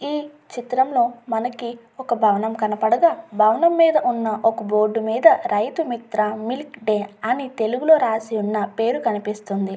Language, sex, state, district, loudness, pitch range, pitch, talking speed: Telugu, female, Andhra Pradesh, Guntur, -20 LUFS, 215-265 Hz, 230 Hz, 135 wpm